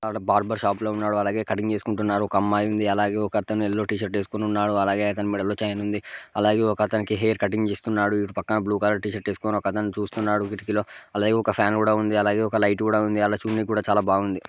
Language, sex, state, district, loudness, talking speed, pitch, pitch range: Telugu, male, Andhra Pradesh, Guntur, -24 LUFS, 230 wpm, 105 Hz, 105-110 Hz